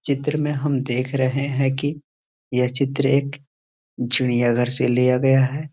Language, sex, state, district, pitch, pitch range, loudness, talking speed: Hindi, male, Bihar, East Champaran, 135 Hz, 125-140 Hz, -21 LUFS, 165 wpm